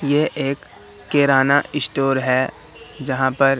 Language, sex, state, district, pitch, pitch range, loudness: Hindi, male, Madhya Pradesh, Katni, 135 Hz, 130-145 Hz, -19 LUFS